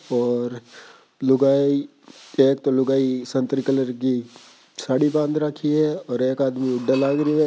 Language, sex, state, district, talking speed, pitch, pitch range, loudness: Marwari, male, Rajasthan, Churu, 135 wpm, 135 Hz, 130-140 Hz, -21 LUFS